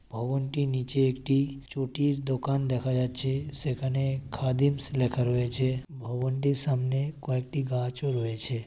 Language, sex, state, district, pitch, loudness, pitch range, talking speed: Bengali, female, West Bengal, Kolkata, 130 Hz, -28 LUFS, 125-140 Hz, 120 wpm